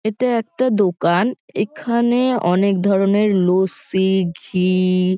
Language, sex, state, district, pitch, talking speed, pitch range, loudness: Bengali, female, West Bengal, Kolkata, 195 Hz, 105 wpm, 185-230 Hz, -17 LUFS